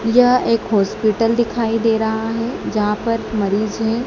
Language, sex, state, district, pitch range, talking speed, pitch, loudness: Hindi, male, Madhya Pradesh, Dhar, 215-230 Hz, 160 wpm, 225 Hz, -18 LUFS